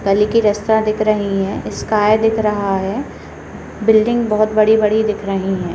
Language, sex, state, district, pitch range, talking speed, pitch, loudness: Hindi, female, Uttarakhand, Uttarkashi, 200-215 Hz, 165 wpm, 215 Hz, -16 LUFS